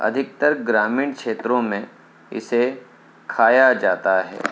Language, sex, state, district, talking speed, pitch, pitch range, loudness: Hindi, male, Uttar Pradesh, Hamirpur, 105 wpm, 125 Hz, 110-135 Hz, -19 LUFS